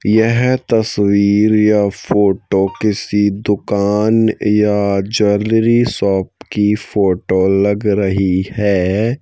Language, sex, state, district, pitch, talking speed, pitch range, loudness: Hindi, male, Madhya Pradesh, Bhopal, 105 Hz, 90 wpm, 100-110 Hz, -14 LUFS